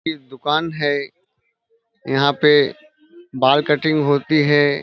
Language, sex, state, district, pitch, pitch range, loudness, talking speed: Hindi, male, Uttar Pradesh, Budaun, 150 Hz, 145-200 Hz, -17 LUFS, 100 wpm